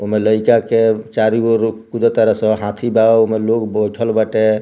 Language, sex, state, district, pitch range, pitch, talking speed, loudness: Bhojpuri, male, Bihar, Muzaffarpur, 110-115 Hz, 110 Hz, 180 wpm, -15 LUFS